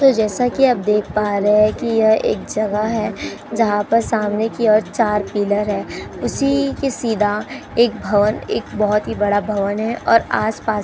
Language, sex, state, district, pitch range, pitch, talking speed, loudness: Hindi, female, Uttar Pradesh, Jyotiba Phule Nagar, 210-230 Hz, 215 Hz, 190 wpm, -18 LUFS